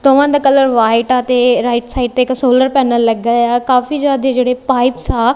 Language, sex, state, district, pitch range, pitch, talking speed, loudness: Punjabi, female, Punjab, Kapurthala, 240-265 Hz, 250 Hz, 235 wpm, -13 LUFS